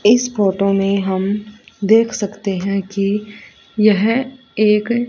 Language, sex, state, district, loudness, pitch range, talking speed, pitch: Hindi, female, Haryana, Rohtak, -17 LUFS, 195-225 Hz, 120 wpm, 210 Hz